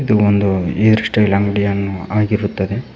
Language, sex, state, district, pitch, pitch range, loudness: Kannada, male, Karnataka, Koppal, 100 Hz, 100-105 Hz, -16 LUFS